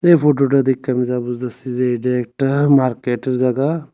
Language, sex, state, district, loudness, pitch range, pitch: Bengali, male, Tripura, West Tripura, -17 LUFS, 125-140 Hz, 130 Hz